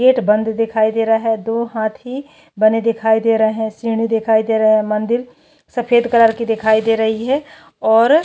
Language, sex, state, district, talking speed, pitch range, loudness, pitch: Hindi, female, Chhattisgarh, Kabirdham, 190 wpm, 220-240 Hz, -16 LUFS, 225 Hz